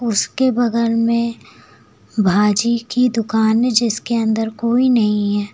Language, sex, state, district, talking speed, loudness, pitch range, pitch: Hindi, female, Uttar Pradesh, Lucknow, 130 wpm, -17 LUFS, 220-240 Hz, 230 Hz